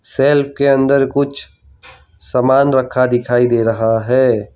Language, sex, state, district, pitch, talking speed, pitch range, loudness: Hindi, male, Gujarat, Valsad, 130 Hz, 130 wpm, 120-140 Hz, -14 LUFS